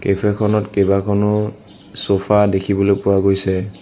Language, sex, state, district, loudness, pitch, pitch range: Assamese, male, Assam, Sonitpur, -17 LUFS, 100 Hz, 100-105 Hz